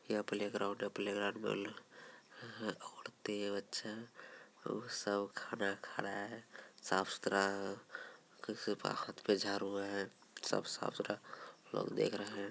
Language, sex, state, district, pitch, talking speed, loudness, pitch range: Angika, male, Bihar, Begusarai, 100 Hz, 140 wpm, -41 LUFS, 100-105 Hz